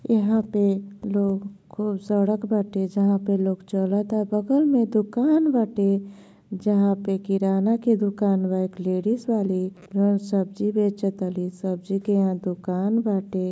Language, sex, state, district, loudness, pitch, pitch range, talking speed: Bhojpuri, female, Uttar Pradesh, Gorakhpur, -23 LUFS, 200 Hz, 195-210 Hz, 140 wpm